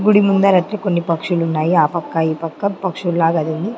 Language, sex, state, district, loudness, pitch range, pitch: Telugu, female, Andhra Pradesh, Sri Satya Sai, -17 LUFS, 165-195 Hz, 175 Hz